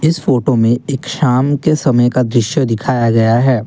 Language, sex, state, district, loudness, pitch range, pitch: Hindi, male, Assam, Kamrup Metropolitan, -13 LUFS, 120-140 Hz, 125 Hz